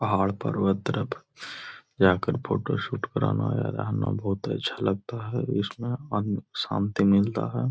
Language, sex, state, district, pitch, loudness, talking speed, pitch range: Hindi, male, Bihar, Gaya, 110 Hz, -27 LUFS, 130 wpm, 100-130 Hz